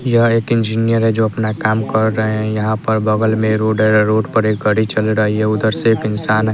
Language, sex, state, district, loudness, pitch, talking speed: Hindi, male, Bihar, West Champaran, -15 LUFS, 110 Hz, 240 wpm